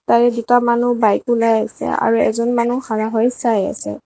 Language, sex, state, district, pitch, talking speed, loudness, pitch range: Assamese, female, Assam, Kamrup Metropolitan, 235 Hz, 180 wpm, -17 LUFS, 220-240 Hz